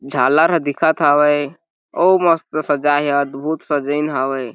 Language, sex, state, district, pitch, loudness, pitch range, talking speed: Chhattisgarhi, male, Chhattisgarh, Jashpur, 145 Hz, -16 LUFS, 140-160 Hz, 145 wpm